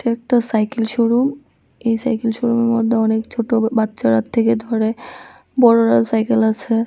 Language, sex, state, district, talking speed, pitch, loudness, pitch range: Bengali, female, Tripura, West Tripura, 130 wpm, 230 Hz, -17 LUFS, 220-240 Hz